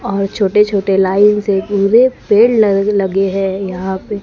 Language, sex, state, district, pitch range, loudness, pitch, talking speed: Hindi, female, Maharashtra, Gondia, 195-210 Hz, -13 LUFS, 200 Hz, 170 wpm